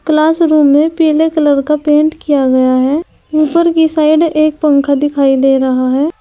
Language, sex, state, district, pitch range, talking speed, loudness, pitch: Hindi, female, Uttar Pradesh, Saharanpur, 280-315 Hz, 175 wpm, -11 LUFS, 305 Hz